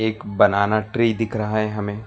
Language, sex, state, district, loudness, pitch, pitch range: Hindi, male, Karnataka, Bangalore, -20 LUFS, 110 Hz, 105-110 Hz